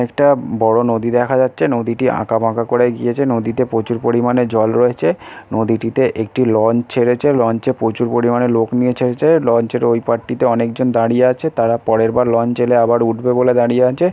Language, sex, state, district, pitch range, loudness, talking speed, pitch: Bengali, male, West Bengal, Dakshin Dinajpur, 115-125 Hz, -15 LUFS, 175 wpm, 120 Hz